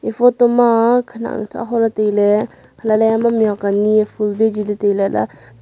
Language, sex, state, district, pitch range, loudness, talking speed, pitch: Wancho, female, Arunachal Pradesh, Longding, 210-230 Hz, -16 LUFS, 180 wpm, 220 Hz